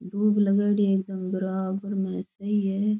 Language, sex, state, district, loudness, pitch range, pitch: Rajasthani, female, Rajasthan, Churu, -26 LUFS, 190-205 Hz, 195 Hz